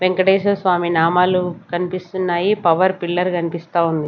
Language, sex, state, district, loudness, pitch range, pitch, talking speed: Telugu, female, Andhra Pradesh, Sri Satya Sai, -18 LUFS, 170-185 Hz, 180 Hz, 120 wpm